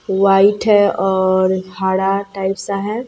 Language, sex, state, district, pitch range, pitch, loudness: Hindi, female, Bihar, Katihar, 190-200 Hz, 195 Hz, -15 LUFS